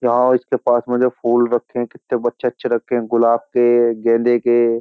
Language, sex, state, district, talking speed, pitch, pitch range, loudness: Hindi, male, Uttar Pradesh, Jyotiba Phule Nagar, 200 wpm, 120 Hz, 120-125 Hz, -17 LUFS